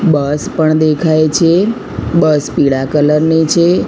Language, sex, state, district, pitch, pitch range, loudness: Gujarati, female, Gujarat, Gandhinagar, 155 Hz, 150-165 Hz, -12 LUFS